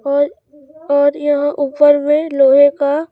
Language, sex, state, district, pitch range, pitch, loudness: Hindi, female, Chhattisgarh, Raipur, 285-295 Hz, 285 Hz, -13 LUFS